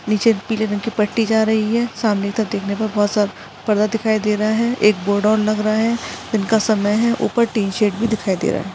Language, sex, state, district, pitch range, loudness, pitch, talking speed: Hindi, female, Maharashtra, Chandrapur, 210-220 Hz, -18 LUFS, 215 Hz, 245 wpm